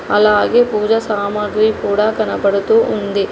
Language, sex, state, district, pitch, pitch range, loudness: Telugu, female, Telangana, Hyderabad, 210 Hz, 205-220 Hz, -15 LUFS